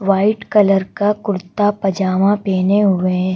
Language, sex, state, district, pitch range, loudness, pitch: Hindi, female, Madhya Pradesh, Bhopal, 190-205 Hz, -16 LUFS, 195 Hz